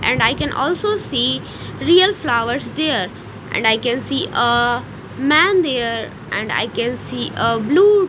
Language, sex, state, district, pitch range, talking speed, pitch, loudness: English, female, Odisha, Nuapada, 235-360 Hz, 150 wpm, 275 Hz, -17 LUFS